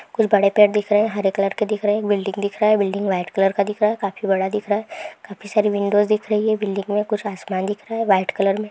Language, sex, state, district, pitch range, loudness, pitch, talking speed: Hindi, female, Andhra Pradesh, Krishna, 200-210 Hz, -20 LUFS, 205 Hz, 255 wpm